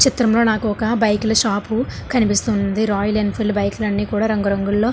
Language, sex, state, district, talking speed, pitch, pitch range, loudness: Telugu, female, Andhra Pradesh, Srikakulam, 160 wpm, 215 Hz, 205-225 Hz, -18 LUFS